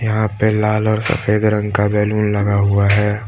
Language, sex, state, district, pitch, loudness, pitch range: Hindi, male, Jharkhand, Palamu, 105 Hz, -16 LUFS, 105-110 Hz